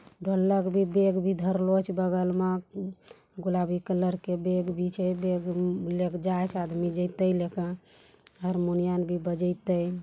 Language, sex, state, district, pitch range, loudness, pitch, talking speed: Angika, female, Bihar, Bhagalpur, 180-185 Hz, -28 LUFS, 180 Hz, 135 wpm